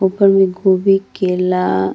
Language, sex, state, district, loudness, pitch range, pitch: Bhojpuri, female, Uttar Pradesh, Deoria, -15 LUFS, 180-195 Hz, 190 Hz